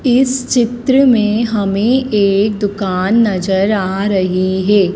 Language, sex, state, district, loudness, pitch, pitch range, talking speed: Hindi, female, Madhya Pradesh, Dhar, -14 LUFS, 210 Hz, 195-240 Hz, 120 wpm